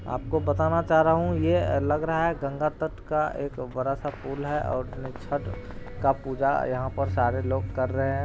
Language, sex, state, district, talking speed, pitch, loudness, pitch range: Hindi, male, Bihar, Araria, 205 wpm, 130 Hz, -26 LUFS, 100-150 Hz